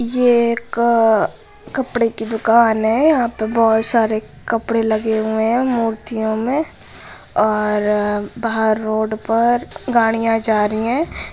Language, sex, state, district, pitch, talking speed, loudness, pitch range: Hindi, female, Bihar, Gopalganj, 225 Hz, 125 wpm, -17 LUFS, 220-235 Hz